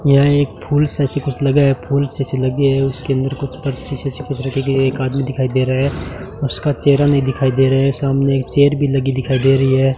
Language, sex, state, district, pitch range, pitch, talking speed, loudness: Hindi, male, Rajasthan, Bikaner, 135-140 Hz, 135 Hz, 260 wpm, -16 LUFS